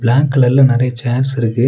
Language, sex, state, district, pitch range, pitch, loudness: Tamil, male, Tamil Nadu, Nilgiris, 120-135 Hz, 125 Hz, -13 LUFS